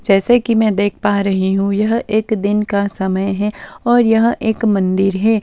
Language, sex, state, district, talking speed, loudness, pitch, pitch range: Hindi, female, Delhi, New Delhi, 200 wpm, -15 LUFS, 210 Hz, 195-225 Hz